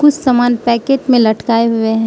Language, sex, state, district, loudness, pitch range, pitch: Hindi, female, Manipur, Imphal West, -13 LUFS, 230-255 Hz, 240 Hz